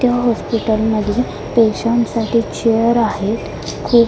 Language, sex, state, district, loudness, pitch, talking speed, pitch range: Marathi, female, Maharashtra, Mumbai Suburban, -17 LUFS, 230 Hz, 130 wpm, 220-235 Hz